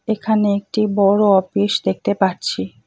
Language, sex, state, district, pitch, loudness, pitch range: Bengali, female, West Bengal, Cooch Behar, 200 Hz, -17 LUFS, 190-210 Hz